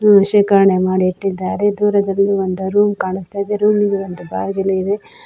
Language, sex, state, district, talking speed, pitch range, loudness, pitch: Kannada, female, Karnataka, Koppal, 160 wpm, 190-205 Hz, -16 LUFS, 195 Hz